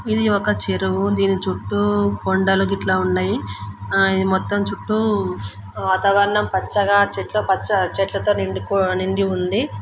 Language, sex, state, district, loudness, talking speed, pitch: Telugu, female, Andhra Pradesh, Guntur, -19 LUFS, 115 wpm, 190 Hz